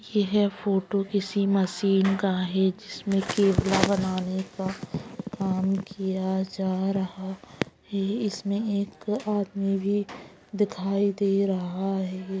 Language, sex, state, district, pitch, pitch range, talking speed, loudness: Magahi, female, Bihar, Gaya, 195 Hz, 190-200 Hz, 110 wpm, -27 LUFS